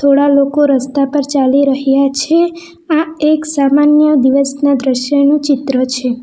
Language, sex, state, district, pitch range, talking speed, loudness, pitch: Gujarati, female, Gujarat, Valsad, 275-300 Hz, 135 wpm, -12 LUFS, 280 Hz